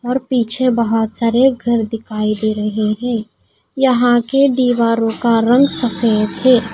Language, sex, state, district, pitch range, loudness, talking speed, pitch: Hindi, female, Odisha, Nuapada, 225-250 Hz, -15 LUFS, 140 wpm, 235 Hz